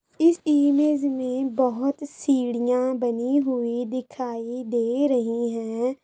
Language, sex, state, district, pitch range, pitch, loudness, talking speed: Hindi, female, Bihar, Araria, 240-280 Hz, 255 Hz, -24 LUFS, 110 wpm